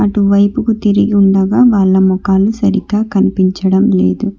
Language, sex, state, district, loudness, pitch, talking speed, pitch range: Telugu, female, Telangana, Hyderabad, -11 LUFS, 200 Hz, 110 wpm, 190-210 Hz